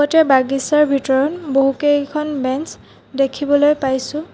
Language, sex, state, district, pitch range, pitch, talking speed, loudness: Assamese, female, Assam, Sonitpur, 270-300 Hz, 285 Hz, 95 wpm, -17 LUFS